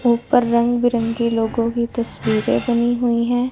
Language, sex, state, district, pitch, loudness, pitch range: Hindi, female, Punjab, Fazilka, 235 Hz, -19 LUFS, 230-240 Hz